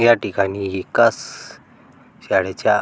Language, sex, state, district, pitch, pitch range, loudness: Marathi, male, Maharashtra, Dhule, 100 Hz, 95-105 Hz, -19 LUFS